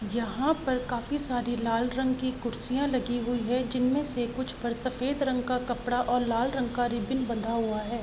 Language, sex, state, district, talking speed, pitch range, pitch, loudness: Hindi, female, Uttar Pradesh, Varanasi, 200 wpm, 235-255 Hz, 245 Hz, -29 LUFS